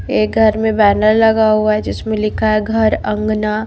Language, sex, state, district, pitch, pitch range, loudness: Hindi, female, Bihar, Patna, 215 Hz, 215-220 Hz, -14 LUFS